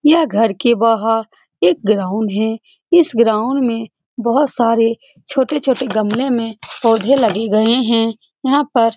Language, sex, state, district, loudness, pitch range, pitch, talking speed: Hindi, female, Bihar, Saran, -16 LUFS, 220-260 Hz, 230 Hz, 145 wpm